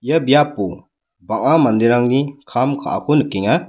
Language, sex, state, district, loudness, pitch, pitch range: Garo, male, Meghalaya, West Garo Hills, -17 LUFS, 135 Hz, 120-145 Hz